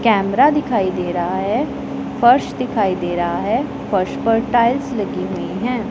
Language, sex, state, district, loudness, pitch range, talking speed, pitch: Hindi, male, Punjab, Pathankot, -18 LUFS, 200-245 Hz, 160 wpm, 230 Hz